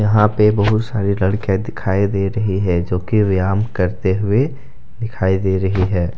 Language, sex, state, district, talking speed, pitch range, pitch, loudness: Hindi, male, Jharkhand, Deoghar, 165 wpm, 95-105 Hz, 100 Hz, -17 LUFS